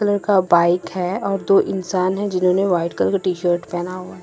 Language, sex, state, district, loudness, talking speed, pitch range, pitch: Hindi, female, Assam, Sonitpur, -19 LUFS, 225 wpm, 180-195 Hz, 185 Hz